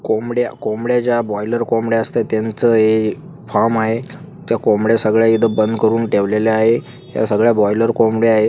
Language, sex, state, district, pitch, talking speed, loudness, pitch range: Marathi, female, Maharashtra, Chandrapur, 115 Hz, 150 wpm, -16 LUFS, 110-115 Hz